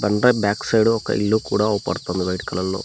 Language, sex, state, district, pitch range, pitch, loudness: Telugu, male, Telangana, Mahabubabad, 95-110 Hz, 105 Hz, -20 LUFS